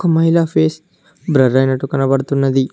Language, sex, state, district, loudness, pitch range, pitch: Telugu, male, Telangana, Mahabubabad, -15 LUFS, 130-160 Hz, 135 Hz